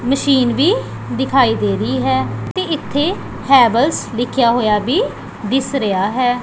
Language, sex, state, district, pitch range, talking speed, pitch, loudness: Punjabi, female, Punjab, Pathankot, 205-275 Hz, 140 wpm, 245 Hz, -16 LUFS